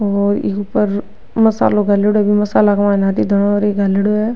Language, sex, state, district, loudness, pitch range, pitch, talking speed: Rajasthani, female, Rajasthan, Nagaur, -15 LUFS, 200-210 Hz, 205 Hz, 195 wpm